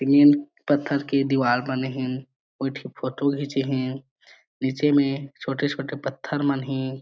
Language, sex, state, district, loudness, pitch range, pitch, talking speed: Chhattisgarhi, male, Chhattisgarh, Jashpur, -24 LUFS, 130-145 Hz, 135 Hz, 145 wpm